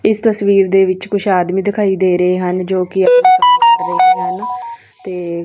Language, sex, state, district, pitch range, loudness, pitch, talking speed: Punjabi, female, Punjab, Fazilka, 185-235 Hz, -13 LUFS, 195 Hz, 155 wpm